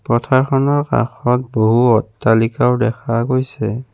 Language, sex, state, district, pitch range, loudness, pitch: Assamese, male, Assam, Kamrup Metropolitan, 115-130 Hz, -16 LUFS, 120 Hz